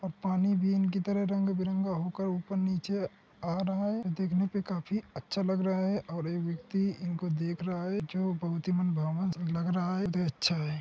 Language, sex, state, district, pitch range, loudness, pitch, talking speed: Hindi, male, Uttar Pradesh, Hamirpur, 175-195 Hz, -32 LUFS, 185 Hz, 215 wpm